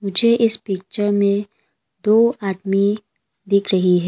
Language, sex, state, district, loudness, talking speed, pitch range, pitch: Hindi, female, Arunachal Pradesh, Papum Pare, -18 LUFS, 115 wpm, 195-215 Hz, 200 Hz